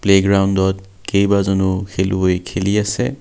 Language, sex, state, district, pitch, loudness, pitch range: Assamese, male, Assam, Kamrup Metropolitan, 95 Hz, -17 LUFS, 95-100 Hz